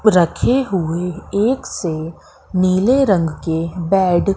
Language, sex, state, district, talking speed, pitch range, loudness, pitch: Hindi, female, Madhya Pradesh, Katni, 125 wpm, 170-200 Hz, -17 LUFS, 185 Hz